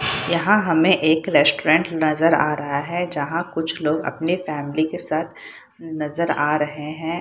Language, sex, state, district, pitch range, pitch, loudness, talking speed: Hindi, female, Bihar, Purnia, 150-170 Hz, 160 Hz, -20 LUFS, 160 wpm